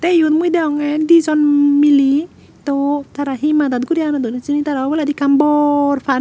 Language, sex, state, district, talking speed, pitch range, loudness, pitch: Chakma, female, Tripura, Unakoti, 175 wpm, 280-305 Hz, -15 LUFS, 290 Hz